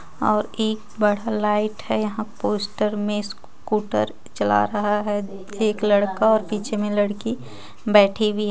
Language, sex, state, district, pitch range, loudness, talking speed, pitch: Hindi, female, Jharkhand, Ranchi, 205-215 Hz, -22 LUFS, 150 wpm, 210 Hz